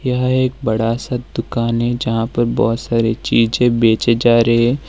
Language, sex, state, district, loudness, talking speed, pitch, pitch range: Hindi, male, Uttar Pradesh, Lalitpur, -16 LUFS, 185 wpm, 115 Hz, 115-125 Hz